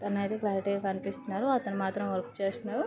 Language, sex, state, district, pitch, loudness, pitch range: Telugu, female, Andhra Pradesh, Visakhapatnam, 200 Hz, -32 LUFS, 195-205 Hz